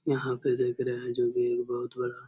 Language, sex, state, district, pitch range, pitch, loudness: Hindi, male, Bihar, Jamui, 360-375 Hz, 370 Hz, -30 LUFS